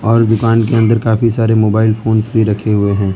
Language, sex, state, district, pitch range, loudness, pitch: Hindi, male, Gujarat, Valsad, 110-115 Hz, -13 LUFS, 110 Hz